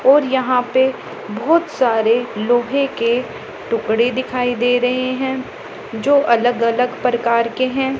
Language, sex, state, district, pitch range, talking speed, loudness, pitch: Hindi, female, Punjab, Pathankot, 235-260 Hz, 135 wpm, -17 LUFS, 250 Hz